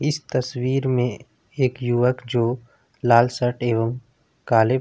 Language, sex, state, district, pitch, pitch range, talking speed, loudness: Hindi, male, Bihar, Vaishali, 125 Hz, 120-130 Hz, 125 wpm, -22 LUFS